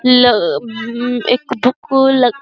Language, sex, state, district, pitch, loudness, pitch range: Hindi, female, Uttar Pradesh, Jyotiba Phule Nagar, 250 Hz, -14 LUFS, 245-265 Hz